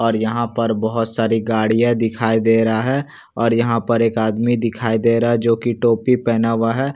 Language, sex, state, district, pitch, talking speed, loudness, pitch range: Hindi, male, Bihar, Katihar, 115 Hz, 215 wpm, -17 LUFS, 115-120 Hz